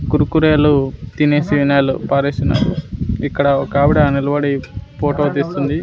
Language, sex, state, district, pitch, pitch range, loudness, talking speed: Telugu, male, Andhra Pradesh, Sri Satya Sai, 145 Hz, 140-150 Hz, -16 LUFS, 80 wpm